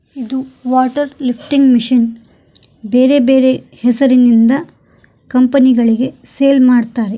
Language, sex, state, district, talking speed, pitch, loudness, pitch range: Kannada, female, Karnataka, Koppal, 90 wpm, 255 Hz, -12 LUFS, 240-265 Hz